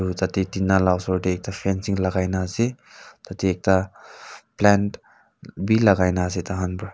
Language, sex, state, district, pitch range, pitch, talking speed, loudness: Nagamese, male, Nagaland, Kohima, 90-100 Hz, 95 Hz, 140 wpm, -22 LUFS